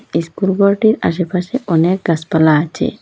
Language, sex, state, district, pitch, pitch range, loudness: Bengali, female, Assam, Hailakandi, 180 Hz, 165-200 Hz, -15 LUFS